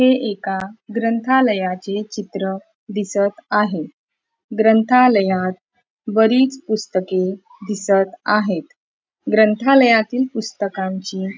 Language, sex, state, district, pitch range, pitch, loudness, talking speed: Marathi, female, Maharashtra, Pune, 195-235 Hz, 210 Hz, -18 LUFS, 70 wpm